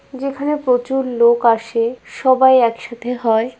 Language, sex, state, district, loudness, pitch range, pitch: Bengali, female, West Bengal, Kolkata, -16 LUFS, 235-260 Hz, 245 Hz